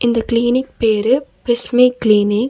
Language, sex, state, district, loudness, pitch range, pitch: Tamil, female, Tamil Nadu, Nilgiris, -15 LUFS, 220-250 Hz, 235 Hz